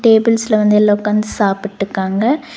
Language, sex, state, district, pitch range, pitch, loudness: Tamil, female, Tamil Nadu, Nilgiris, 205-225 Hz, 210 Hz, -15 LUFS